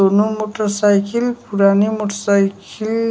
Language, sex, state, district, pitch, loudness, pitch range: Hindi, male, Bihar, West Champaran, 210 Hz, -17 LUFS, 200-220 Hz